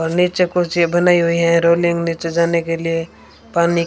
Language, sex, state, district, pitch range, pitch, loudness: Hindi, female, Rajasthan, Bikaner, 170-175 Hz, 170 Hz, -16 LUFS